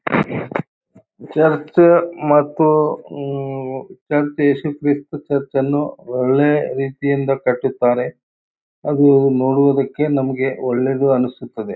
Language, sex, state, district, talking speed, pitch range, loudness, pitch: Kannada, male, Karnataka, Bijapur, 80 wpm, 130-150 Hz, -17 LUFS, 140 Hz